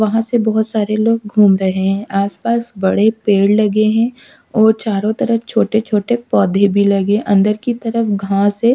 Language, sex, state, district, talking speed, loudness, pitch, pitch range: Hindi, female, Odisha, Sambalpur, 185 wpm, -15 LUFS, 215 Hz, 200-225 Hz